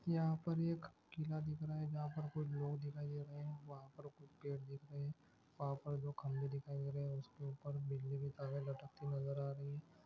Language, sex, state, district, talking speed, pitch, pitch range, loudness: Hindi, male, Jharkhand, Jamtara, 230 wpm, 145 Hz, 140-150 Hz, -45 LUFS